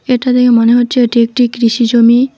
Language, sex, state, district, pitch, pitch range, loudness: Bengali, female, West Bengal, Alipurduar, 240 Hz, 235-250 Hz, -10 LUFS